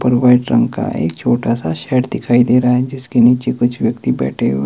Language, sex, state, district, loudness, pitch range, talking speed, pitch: Hindi, male, Himachal Pradesh, Shimla, -15 LUFS, 120-125 Hz, 230 wpm, 125 Hz